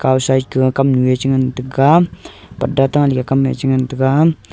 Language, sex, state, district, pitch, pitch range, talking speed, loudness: Wancho, male, Arunachal Pradesh, Longding, 135 Hz, 130-135 Hz, 160 wpm, -15 LUFS